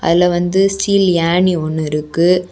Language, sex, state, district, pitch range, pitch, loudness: Tamil, female, Tamil Nadu, Kanyakumari, 165-185 Hz, 175 Hz, -14 LUFS